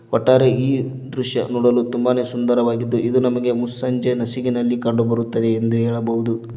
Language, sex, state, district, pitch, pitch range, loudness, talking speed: Kannada, male, Karnataka, Koppal, 120 Hz, 115-125 Hz, -19 LUFS, 120 wpm